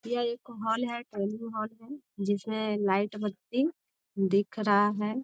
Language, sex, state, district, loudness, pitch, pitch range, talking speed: Hindi, female, Bihar, Jamui, -30 LUFS, 215 Hz, 205-240 Hz, 150 wpm